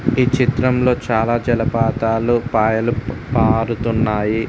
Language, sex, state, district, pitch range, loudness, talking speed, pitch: Telugu, male, Telangana, Mahabubabad, 110-125 Hz, -17 LUFS, 80 wpm, 115 Hz